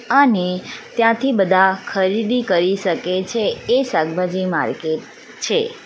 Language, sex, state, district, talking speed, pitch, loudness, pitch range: Gujarati, female, Gujarat, Valsad, 110 wpm, 190 Hz, -18 LUFS, 180-245 Hz